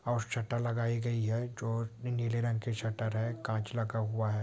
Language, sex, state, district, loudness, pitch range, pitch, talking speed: Hindi, male, West Bengal, Jalpaiguri, -34 LUFS, 110-120 Hz, 115 Hz, 190 wpm